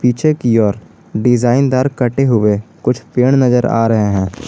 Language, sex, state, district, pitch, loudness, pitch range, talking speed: Hindi, male, Jharkhand, Garhwa, 120 Hz, -14 LUFS, 110-130 Hz, 175 wpm